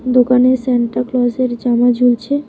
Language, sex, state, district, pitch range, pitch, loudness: Bengali, female, West Bengal, Alipurduar, 245-255 Hz, 250 Hz, -14 LUFS